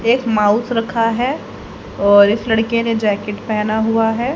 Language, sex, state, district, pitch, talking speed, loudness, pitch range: Hindi, female, Haryana, Charkhi Dadri, 225 Hz, 165 wpm, -16 LUFS, 210-230 Hz